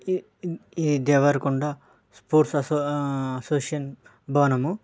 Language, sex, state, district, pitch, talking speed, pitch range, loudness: Telugu, male, Telangana, Nalgonda, 145 Hz, 60 wpm, 135-155 Hz, -24 LUFS